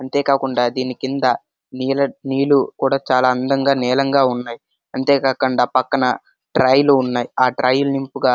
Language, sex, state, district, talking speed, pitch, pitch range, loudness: Telugu, male, Andhra Pradesh, Srikakulam, 130 wpm, 130 Hz, 125-135 Hz, -18 LUFS